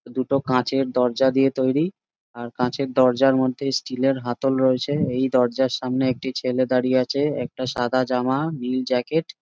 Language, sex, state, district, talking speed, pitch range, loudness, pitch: Bengali, male, West Bengal, Jalpaiguri, 155 wpm, 125-135 Hz, -22 LUFS, 130 Hz